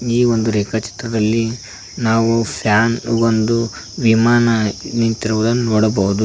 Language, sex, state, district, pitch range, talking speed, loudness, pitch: Kannada, male, Karnataka, Koppal, 110-115 Hz, 95 wpm, -16 LUFS, 115 Hz